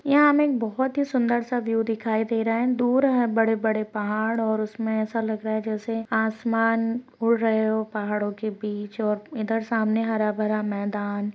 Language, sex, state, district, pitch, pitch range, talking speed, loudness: Hindi, female, Uttarakhand, Uttarkashi, 225 Hz, 215-230 Hz, 195 wpm, -24 LUFS